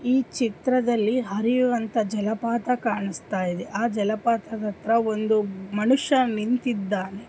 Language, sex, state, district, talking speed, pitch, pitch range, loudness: Kannada, female, Karnataka, Dharwad, 80 wpm, 225 Hz, 210-240 Hz, -24 LUFS